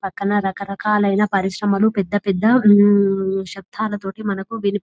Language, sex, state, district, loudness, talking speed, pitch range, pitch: Telugu, female, Telangana, Nalgonda, -18 LUFS, 85 wpm, 195-210 Hz, 200 Hz